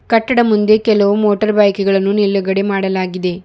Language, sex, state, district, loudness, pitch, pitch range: Kannada, female, Karnataka, Bidar, -14 LUFS, 200 Hz, 195-215 Hz